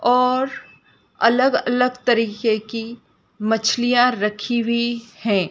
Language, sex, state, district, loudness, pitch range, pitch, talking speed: Hindi, female, Madhya Pradesh, Dhar, -20 LUFS, 220-245 Hz, 235 Hz, 100 wpm